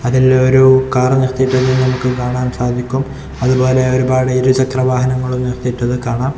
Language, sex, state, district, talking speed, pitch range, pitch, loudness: Malayalam, male, Kerala, Kozhikode, 115 wpm, 125-130 Hz, 130 Hz, -14 LUFS